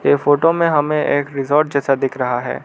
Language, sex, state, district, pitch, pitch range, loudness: Hindi, male, Arunachal Pradesh, Lower Dibang Valley, 145 Hz, 135-150 Hz, -17 LUFS